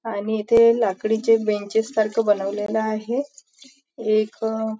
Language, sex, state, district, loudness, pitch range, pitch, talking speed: Marathi, female, Maharashtra, Nagpur, -21 LUFS, 215-230 Hz, 220 Hz, 125 wpm